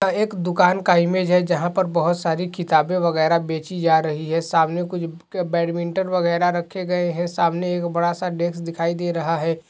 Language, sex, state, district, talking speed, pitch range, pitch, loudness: Hindi, male, Uttar Pradesh, Hamirpur, 190 wpm, 165-180 Hz, 175 Hz, -21 LUFS